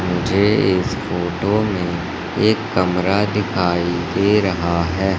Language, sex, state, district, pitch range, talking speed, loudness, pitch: Hindi, male, Madhya Pradesh, Katni, 90-105 Hz, 115 wpm, -18 LUFS, 95 Hz